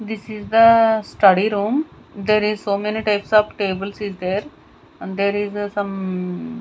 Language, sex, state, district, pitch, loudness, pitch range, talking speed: English, female, Punjab, Kapurthala, 205 Hz, -19 LUFS, 195-215 Hz, 170 wpm